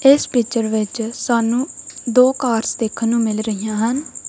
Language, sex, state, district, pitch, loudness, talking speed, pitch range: Punjabi, female, Punjab, Kapurthala, 230 Hz, -18 LUFS, 155 wpm, 220-250 Hz